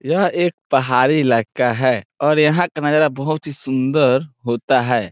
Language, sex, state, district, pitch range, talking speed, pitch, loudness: Hindi, male, Bihar, Saran, 125-155 Hz, 165 wpm, 135 Hz, -17 LUFS